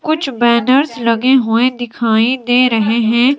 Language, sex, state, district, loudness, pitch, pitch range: Hindi, female, Himachal Pradesh, Shimla, -13 LUFS, 240 Hz, 230-260 Hz